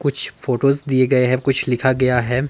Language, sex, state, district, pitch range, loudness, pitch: Hindi, male, Himachal Pradesh, Shimla, 125-135 Hz, -18 LUFS, 130 Hz